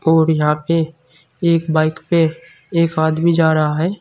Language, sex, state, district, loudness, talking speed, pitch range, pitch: Hindi, male, Uttar Pradesh, Saharanpur, -17 LUFS, 165 wpm, 155-165 Hz, 160 Hz